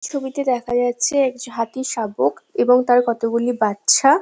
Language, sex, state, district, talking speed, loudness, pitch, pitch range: Bengali, female, West Bengal, Jhargram, 170 wpm, -19 LUFS, 245 Hz, 235-265 Hz